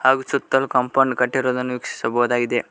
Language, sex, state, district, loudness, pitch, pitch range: Kannada, male, Karnataka, Koppal, -20 LUFS, 125 Hz, 120-135 Hz